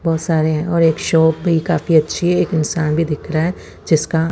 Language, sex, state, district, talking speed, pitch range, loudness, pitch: Hindi, female, Chandigarh, Chandigarh, 220 wpm, 155-170 Hz, -16 LUFS, 160 Hz